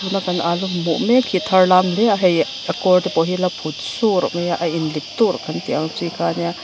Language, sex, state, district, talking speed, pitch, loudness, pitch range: Mizo, female, Mizoram, Aizawl, 255 wpm, 175 Hz, -18 LUFS, 165-185 Hz